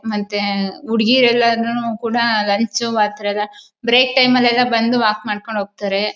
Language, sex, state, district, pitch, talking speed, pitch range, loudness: Kannada, female, Karnataka, Mysore, 230 Hz, 115 wpm, 210-240 Hz, -16 LUFS